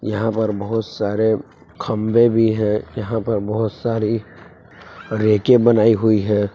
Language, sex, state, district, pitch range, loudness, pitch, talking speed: Hindi, male, Jharkhand, Palamu, 105-115 Hz, -18 LUFS, 110 Hz, 135 wpm